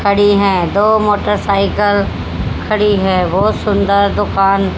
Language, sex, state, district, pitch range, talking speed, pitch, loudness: Hindi, female, Haryana, Jhajjar, 195-205 Hz, 115 wpm, 200 Hz, -13 LUFS